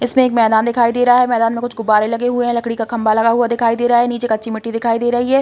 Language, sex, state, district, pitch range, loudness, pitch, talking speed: Hindi, female, Uttar Pradesh, Hamirpur, 230-245 Hz, -15 LUFS, 235 Hz, 330 wpm